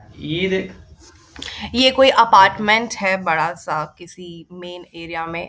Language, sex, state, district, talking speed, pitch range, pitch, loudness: Hindi, female, Bihar, Jahanabad, 110 wpm, 155-190 Hz, 175 Hz, -16 LUFS